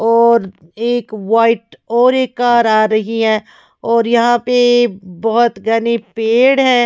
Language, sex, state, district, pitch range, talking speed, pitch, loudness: Hindi, female, Maharashtra, Mumbai Suburban, 220-240 Hz, 140 wpm, 230 Hz, -14 LUFS